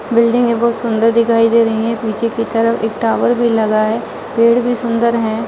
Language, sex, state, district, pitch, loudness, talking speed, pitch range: Hindi, female, Uttar Pradesh, Muzaffarnagar, 230 Hz, -14 LUFS, 210 wpm, 225-235 Hz